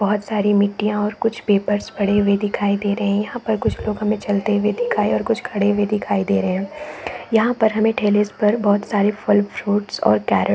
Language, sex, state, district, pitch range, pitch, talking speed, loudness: Hindi, female, Chhattisgarh, Raigarh, 205-215 Hz, 205 Hz, 215 wpm, -19 LUFS